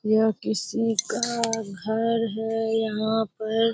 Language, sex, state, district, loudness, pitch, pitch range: Hindi, female, Bihar, Purnia, -25 LUFS, 225 Hz, 220-230 Hz